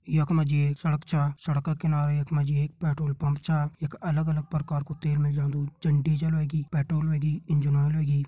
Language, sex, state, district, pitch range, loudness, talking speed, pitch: Hindi, male, Uttarakhand, Tehri Garhwal, 145-155 Hz, -27 LUFS, 210 wpm, 150 Hz